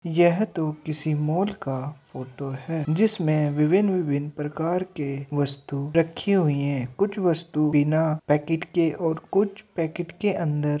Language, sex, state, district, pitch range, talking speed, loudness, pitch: Hindi, male, Uttar Pradesh, Hamirpur, 145-175 Hz, 155 wpm, -25 LUFS, 160 Hz